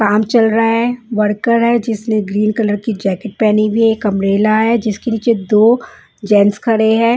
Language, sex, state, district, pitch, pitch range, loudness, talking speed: Hindi, female, Bihar, West Champaran, 220 Hz, 210-230 Hz, -14 LUFS, 190 wpm